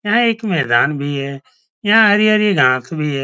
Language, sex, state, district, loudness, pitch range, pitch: Hindi, male, Uttar Pradesh, Etah, -15 LUFS, 140-215 Hz, 165 Hz